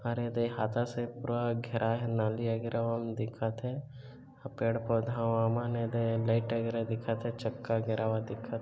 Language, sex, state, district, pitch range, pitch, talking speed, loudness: Chhattisgarhi, male, Chhattisgarh, Bilaspur, 115-120 Hz, 115 Hz, 175 wpm, -33 LUFS